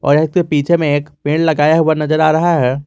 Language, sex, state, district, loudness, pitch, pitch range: Hindi, male, Jharkhand, Garhwa, -14 LUFS, 155 Hz, 145-160 Hz